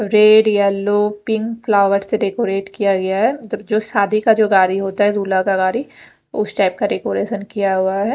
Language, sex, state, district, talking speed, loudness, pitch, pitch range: Hindi, female, Punjab, Fazilka, 200 wpm, -17 LUFS, 205 Hz, 195-215 Hz